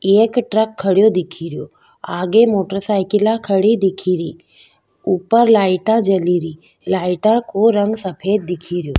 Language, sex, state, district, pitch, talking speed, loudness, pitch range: Rajasthani, female, Rajasthan, Nagaur, 195 Hz, 135 wpm, -16 LUFS, 180-220 Hz